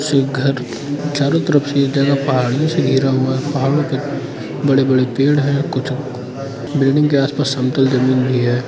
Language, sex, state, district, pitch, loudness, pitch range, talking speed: Hindi, male, Arunachal Pradesh, Lower Dibang Valley, 135 Hz, -17 LUFS, 130-145 Hz, 165 wpm